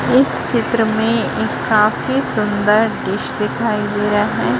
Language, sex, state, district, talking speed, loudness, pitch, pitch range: Hindi, female, Chhattisgarh, Raipur, 145 wpm, -17 LUFS, 215 Hz, 210-225 Hz